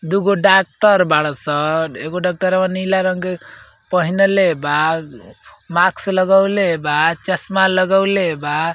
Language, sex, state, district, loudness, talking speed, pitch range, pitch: Bhojpuri, male, Uttar Pradesh, Ghazipur, -16 LUFS, 110 wpm, 160-190 Hz, 185 Hz